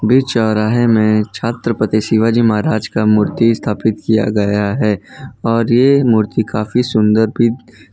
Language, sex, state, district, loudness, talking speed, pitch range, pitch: Hindi, male, Gujarat, Valsad, -14 LUFS, 135 wpm, 105-115 Hz, 110 Hz